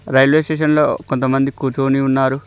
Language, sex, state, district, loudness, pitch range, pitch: Telugu, male, Telangana, Mahabubabad, -16 LUFS, 135-150 Hz, 135 Hz